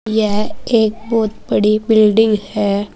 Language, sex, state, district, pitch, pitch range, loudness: Hindi, female, Uttar Pradesh, Saharanpur, 215 Hz, 210-220 Hz, -15 LUFS